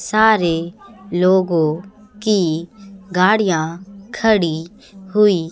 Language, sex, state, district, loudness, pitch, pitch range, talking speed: Hindi, female, Chhattisgarh, Raipur, -17 LUFS, 190 Hz, 170-210 Hz, 65 wpm